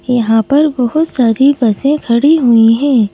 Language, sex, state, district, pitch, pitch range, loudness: Hindi, female, Madhya Pradesh, Bhopal, 250 Hz, 230-285 Hz, -11 LUFS